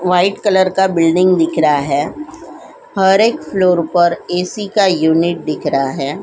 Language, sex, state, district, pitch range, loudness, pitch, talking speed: Hindi, female, Goa, North and South Goa, 165-195 Hz, -14 LUFS, 180 Hz, 165 wpm